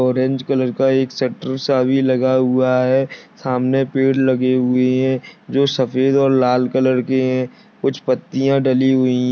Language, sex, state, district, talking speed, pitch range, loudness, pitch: Hindi, male, Uttar Pradesh, Deoria, 175 wpm, 130-135 Hz, -17 LUFS, 130 Hz